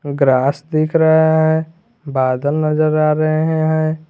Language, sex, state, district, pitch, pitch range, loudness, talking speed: Hindi, male, Jharkhand, Garhwa, 155 Hz, 145-160 Hz, -15 LUFS, 130 wpm